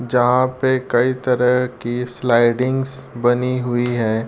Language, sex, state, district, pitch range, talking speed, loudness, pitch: Hindi, male, Uttar Pradesh, Deoria, 120-130 Hz, 125 wpm, -18 LUFS, 125 Hz